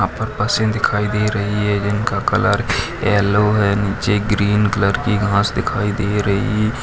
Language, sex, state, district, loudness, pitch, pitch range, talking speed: Hindi, male, Bihar, Araria, -17 LUFS, 105 Hz, 100-105 Hz, 175 wpm